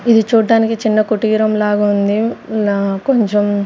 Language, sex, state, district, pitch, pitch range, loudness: Telugu, female, Andhra Pradesh, Sri Satya Sai, 215 Hz, 205-225 Hz, -14 LUFS